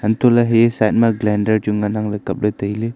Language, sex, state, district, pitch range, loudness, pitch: Wancho, male, Arunachal Pradesh, Longding, 105-115 Hz, -17 LUFS, 110 Hz